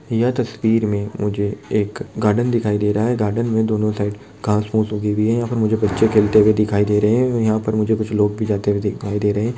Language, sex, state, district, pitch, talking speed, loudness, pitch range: Hindi, male, Bihar, Jamui, 105 Hz, 245 wpm, -19 LUFS, 105-110 Hz